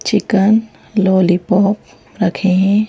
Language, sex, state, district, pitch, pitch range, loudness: Hindi, female, Madhya Pradesh, Bhopal, 195 Hz, 185-210 Hz, -15 LUFS